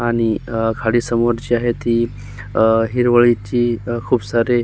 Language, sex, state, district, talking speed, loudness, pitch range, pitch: Marathi, male, Maharashtra, Solapur, 115 wpm, -17 LUFS, 115-120 Hz, 120 Hz